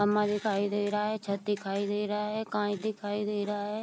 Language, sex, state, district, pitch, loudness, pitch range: Hindi, female, Bihar, Vaishali, 205 Hz, -31 LUFS, 205-210 Hz